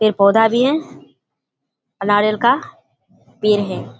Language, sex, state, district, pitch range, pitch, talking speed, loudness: Hindi, female, Bihar, Kishanganj, 205-240 Hz, 215 Hz, 135 wpm, -16 LUFS